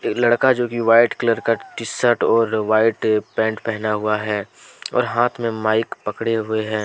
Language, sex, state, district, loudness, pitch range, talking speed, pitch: Hindi, male, Jharkhand, Deoghar, -19 LUFS, 110-115 Hz, 185 wpm, 110 Hz